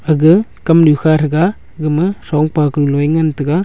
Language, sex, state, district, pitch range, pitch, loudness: Wancho, male, Arunachal Pradesh, Longding, 150-165 Hz, 155 Hz, -13 LUFS